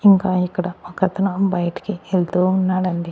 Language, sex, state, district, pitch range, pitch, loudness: Telugu, male, Andhra Pradesh, Annamaya, 180-190 Hz, 185 Hz, -20 LUFS